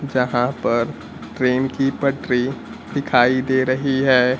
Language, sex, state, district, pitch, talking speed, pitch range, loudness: Hindi, male, Bihar, Kaimur, 130 Hz, 125 wpm, 125-135 Hz, -19 LUFS